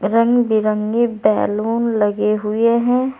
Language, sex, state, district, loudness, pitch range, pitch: Hindi, female, Uttar Pradesh, Saharanpur, -17 LUFS, 215-235 Hz, 225 Hz